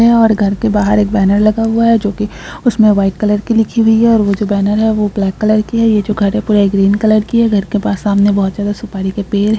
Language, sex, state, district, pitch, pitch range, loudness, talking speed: Hindi, female, Karnataka, Gulbarga, 210 Hz, 200-220 Hz, -12 LUFS, 290 wpm